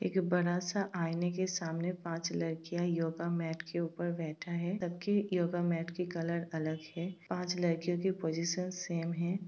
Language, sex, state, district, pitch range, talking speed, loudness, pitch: Hindi, female, Bihar, Bhagalpur, 165-180 Hz, 175 wpm, -35 LUFS, 175 Hz